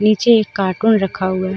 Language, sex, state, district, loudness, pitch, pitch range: Hindi, female, Jharkhand, Deoghar, -16 LUFS, 200 Hz, 190-220 Hz